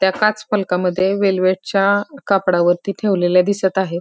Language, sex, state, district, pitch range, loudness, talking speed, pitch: Marathi, female, Maharashtra, Pune, 185-200 Hz, -17 LUFS, 120 wpm, 190 Hz